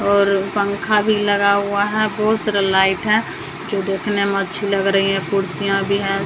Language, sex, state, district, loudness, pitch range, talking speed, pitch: Hindi, female, Bihar, Patna, -18 LUFS, 195-205 Hz, 190 wpm, 200 Hz